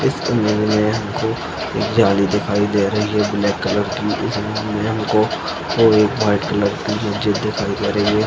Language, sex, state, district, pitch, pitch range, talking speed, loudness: Hindi, male, Chhattisgarh, Sarguja, 105 Hz, 100-110 Hz, 140 wpm, -18 LUFS